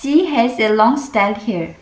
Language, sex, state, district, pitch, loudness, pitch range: English, female, Arunachal Pradesh, Lower Dibang Valley, 230 Hz, -16 LUFS, 205-280 Hz